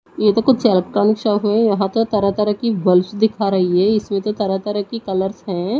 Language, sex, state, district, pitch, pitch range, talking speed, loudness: Hindi, female, Odisha, Nuapada, 205 Hz, 195-215 Hz, 215 wpm, -17 LUFS